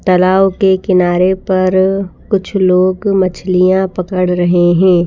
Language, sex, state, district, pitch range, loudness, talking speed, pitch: Hindi, female, Madhya Pradesh, Bhopal, 180-190 Hz, -12 LUFS, 120 wpm, 185 Hz